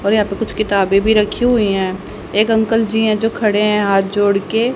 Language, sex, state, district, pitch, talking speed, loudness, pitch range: Hindi, female, Haryana, Rohtak, 210 Hz, 240 wpm, -15 LUFS, 200-220 Hz